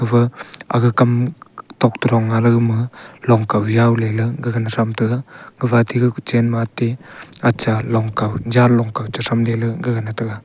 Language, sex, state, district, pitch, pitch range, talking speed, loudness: Wancho, male, Arunachal Pradesh, Longding, 115 Hz, 115-120 Hz, 190 wpm, -18 LUFS